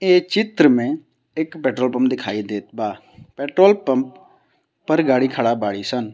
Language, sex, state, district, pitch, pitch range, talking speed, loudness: Bhojpuri, male, Bihar, Gopalganj, 130 Hz, 120-160 Hz, 155 wpm, -19 LUFS